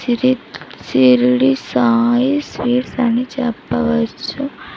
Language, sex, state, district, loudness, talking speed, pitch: Telugu, female, Andhra Pradesh, Sri Satya Sai, -16 LUFS, 75 wpm, 240 Hz